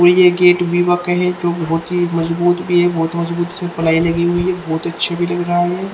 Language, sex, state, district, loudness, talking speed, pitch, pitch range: Hindi, female, Haryana, Charkhi Dadri, -16 LUFS, 240 wpm, 175 Hz, 170-175 Hz